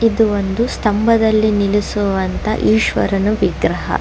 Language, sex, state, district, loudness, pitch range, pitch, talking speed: Kannada, female, Karnataka, Dakshina Kannada, -16 LUFS, 200-220 Hz, 210 Hz, 90 wpm